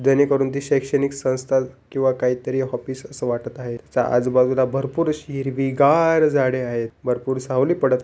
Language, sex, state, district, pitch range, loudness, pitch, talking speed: Marathi, male, Maharashtra, Pune, 125-140 Hz, -21 LUFS, 130 Hz, 155 wpm